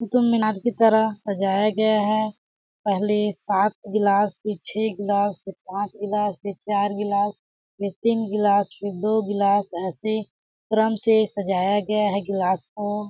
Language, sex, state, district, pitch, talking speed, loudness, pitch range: Hindi, female, Chhattisgarh, Balrampur, 205 Hz, 150 wpm, -23 LUFS, 200-215 Hz